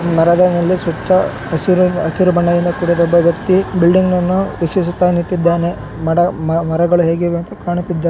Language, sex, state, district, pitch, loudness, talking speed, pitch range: Kannada, male, Karnataka, Shimoga, 175 Hz, -14 LUFS, 150 wpm, 170-180 Hz